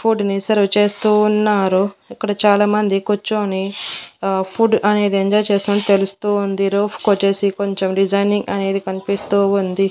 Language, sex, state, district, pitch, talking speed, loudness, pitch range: Telugu, female, Andhra Pradesh, Annamaya, 200 Hz, 135 wpm, -17 LUFS, 195-210 Hz